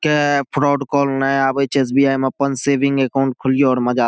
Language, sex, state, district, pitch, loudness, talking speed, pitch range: Maithili, male, Bihar, Saharsa, 135 Hz, -17 LUFS, 220 wpm, 135-140 Hz